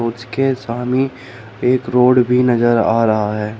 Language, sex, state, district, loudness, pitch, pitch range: Hindi, male, Uttar Pradesh, Shamli, -16 LUFS, 120 Hz, 115-125 Hz